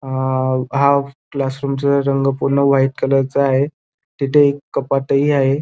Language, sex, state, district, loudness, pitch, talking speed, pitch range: Marathi, male, Maharashtra, Dhule, -17 LUFS, 140 Hz, 150 wpm, 135-140 Hz